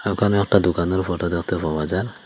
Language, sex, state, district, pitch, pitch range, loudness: Bengali, male, Assam, Hailakandi, 90 Hz, 85-100 Hz, -21 LUFS